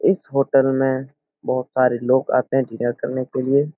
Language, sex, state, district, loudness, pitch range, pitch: Hindi, male, Bihar, Supaul, -20 LUFS, 130-140 Hz, 130 Hz